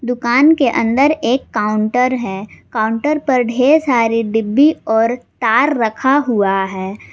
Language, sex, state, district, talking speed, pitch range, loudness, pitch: Hindi, female, Jharkhand, Garhwa, 135 wpm, 220-270 Hz, -15 LUFS, 240 Hz